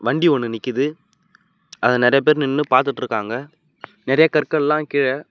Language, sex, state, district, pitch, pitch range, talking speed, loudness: Tamil, male, Tamil Nadu, Namakkal, 140 Hz, 130-150 Hz, 125 wpm, -18 LUFS